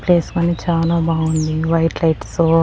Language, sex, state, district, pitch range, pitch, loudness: Telugu, female, Andhra Pradesh, Annamaya, 160-170 Hz, 165 Hz, -17 LUFS